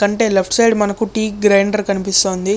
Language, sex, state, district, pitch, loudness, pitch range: Telugu, male, Andhra Pradesh, Chittoor, 205 Hz, -15 LUFS, 195-215 Hz